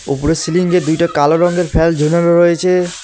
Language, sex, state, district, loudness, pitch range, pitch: Bengali, male, West Bengal, Alipurduar, -13 LUFS, 160-175 Hz, 170 Hz